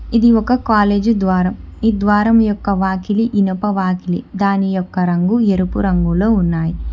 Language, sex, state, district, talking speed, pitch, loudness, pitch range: Telugu, female, Telangana, Hyderabad, 140 wpm, 200 Hz, -15 LUFS, 185-220 Hz